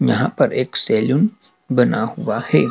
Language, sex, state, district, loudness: Hindi, male, Madhya Pradesh, Dhar, -17 LUFS